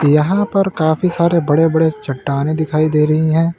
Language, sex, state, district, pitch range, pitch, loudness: Hindi, male, Uttar Pradesh, Lalitpur, 150-170 Hz, 160 Hz, -15 LUFS